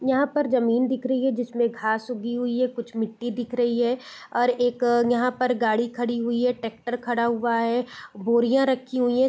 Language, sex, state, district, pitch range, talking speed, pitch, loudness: Hindi, female, Bihar, East Champaran, 235-250 Hz, 205 wpm, 240 Hz, -24 LUFS